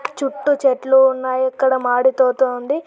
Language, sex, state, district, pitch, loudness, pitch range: Telugu, male, Andhra Pradesh, Guntur, 265 Hz, -17 LUFS, 255-270 Hz